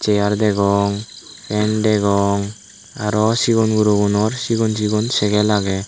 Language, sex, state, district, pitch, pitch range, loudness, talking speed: Chakma, male, Tripura, Dhalai, 105 Hz, 100-110 Hz, -17 LUFS, 110 wpm